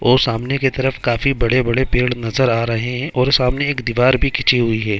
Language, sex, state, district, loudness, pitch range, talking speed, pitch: Hindi, male, Bihar, Bhagalpur, -17 LUFS, 120-135 Hz, 230 wpm, 125 Hz